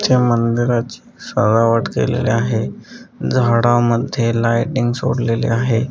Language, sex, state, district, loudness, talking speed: Marathi, female, Maharashtra, Dhule, -17 LUFS, 100 wpm